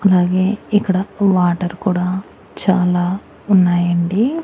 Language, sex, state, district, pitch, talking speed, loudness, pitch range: Telugu, female, Andhra Pradesh, Annamaya, 185 Hz, 80 wpm, -17 LUFS, 180-200 Hz